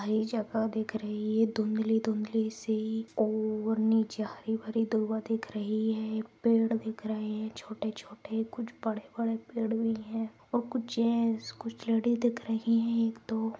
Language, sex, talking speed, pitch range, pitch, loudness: Magahi, female, 150 wpm, 220-225 Hz, 225 Hz, -31 LUFS